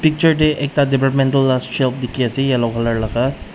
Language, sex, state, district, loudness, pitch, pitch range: Nagamese, male, Nagaland, Dimapur, -17 LUFS, 135 Hz, 125-140 Hz